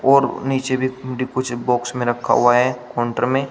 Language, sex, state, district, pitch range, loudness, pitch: Hindi, male, Uttar Pradesh, Shamli, 120-130 Hz, -19 LUFS, 130 Hz